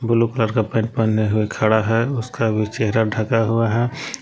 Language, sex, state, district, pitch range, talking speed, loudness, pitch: Hindi, male, Jharkhand, Palamu, 110-115 Hz, 200 wpm, -19 LUFS, 115 Hz